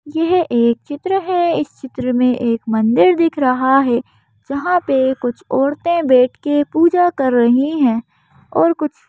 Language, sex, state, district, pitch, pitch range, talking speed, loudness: Hindi, female, Madhya Pradesh, Bhopal, 275 Hz, 250-335 Hz, 160 wpm, -16 LUFS